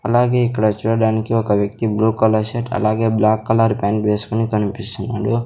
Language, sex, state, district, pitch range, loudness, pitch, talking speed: Telugu, male, Andhra Pradesh, Sri Satya Sai, 105-115 Hz, -18 LUFS, 110 Hz, 155 wpm